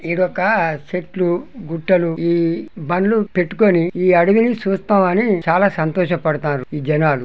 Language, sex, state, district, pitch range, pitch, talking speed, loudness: Telugu, male, Telangana, Nalgonda, 165-195 Hz, 180 Hz, 110 wpm, -17 LUFS